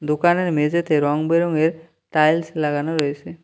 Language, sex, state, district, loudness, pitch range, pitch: Bengali, male, West Bengal, Cooch Behar, -20 LUFS, 150-165 Hz, 160 Hz